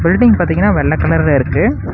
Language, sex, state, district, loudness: Tamil, male, Tamil Nadu, Namakkal, -12 LUFS